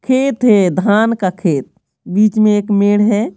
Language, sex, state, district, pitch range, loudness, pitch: Hindi, female, Bihar, Patna, 195-215 Hz, -13 LUFS, 210 Hz